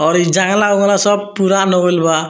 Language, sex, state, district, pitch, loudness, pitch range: Bhojpuri, male, Bihar, Muzaffarpur, 190 Hz, -13 LUFS, 175-200 Hz